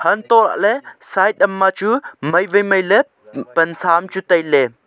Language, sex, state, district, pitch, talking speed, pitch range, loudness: Wancho, male, Arunachal Pradesh, Longding, 190 Hz, 195 wpm, 170-205 Hz, -16 LUFS